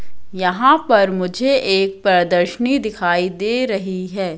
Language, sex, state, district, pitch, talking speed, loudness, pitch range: Hindi, female, Madhya Pradesh, Katni, 195 Hz, 125 wpm, -17 LUFS, 180-235 Hz